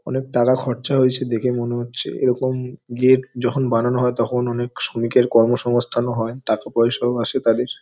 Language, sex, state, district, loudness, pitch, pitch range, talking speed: Bengali, male, West Bengal, Paschim Medinipur, -19 LUFS, 120 Hz, 120-130 Hz, 175 wpm